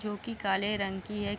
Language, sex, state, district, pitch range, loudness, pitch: Hindi, female, Bihar, East Champaran, 195-210 Hz, -32 LUFS, 205 Hz